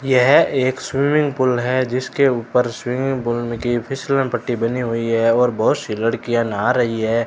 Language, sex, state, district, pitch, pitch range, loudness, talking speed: Hindi, male, Rajasthan, Bikaner, 125 Hz, 115-130 Hz, -18 LUFS, 180 wpm